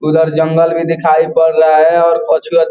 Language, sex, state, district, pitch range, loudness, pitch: Hindi, male, Bihar, Gopalganj, 160-165 Hz, -11 LUFS, 160 Hz